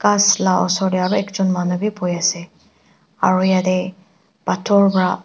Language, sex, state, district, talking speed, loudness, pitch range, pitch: Nagamese, female, Nagaland, Dimapur, 150 wpm, -17 LUFS, 185-195 Hz, 185 Hz